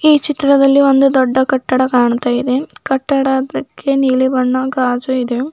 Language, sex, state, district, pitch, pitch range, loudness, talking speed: Kannada, female, Karnataka, Bidar, 260 Hz, 255-275 Hz, -14 LUFS, 130 wpm